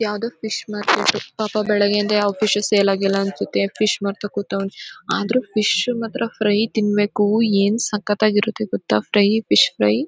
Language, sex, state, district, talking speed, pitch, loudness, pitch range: Kannada, female, Karnataka, Mysore, 150 wpm, 210 Hz, -19 LUFS, 200-215 Hz